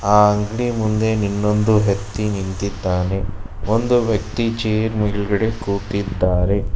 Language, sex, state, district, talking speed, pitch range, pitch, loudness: Kannada, male, Karnataka, Bangalore, 100 wpm, 100-110 Hz, 105 Hz, -19 LUFS